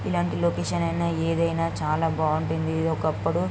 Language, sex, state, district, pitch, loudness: Telugu, female, Andhra Pradesh, Guntur, 155 Hz, -25 LUFS